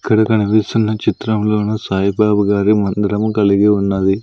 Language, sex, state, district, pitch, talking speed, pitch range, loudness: Telugu, male, Andhra Pradesh, Sri Satya Sai, 105 Hz, 115 wpm, 100-110 Hz, -15 LUFS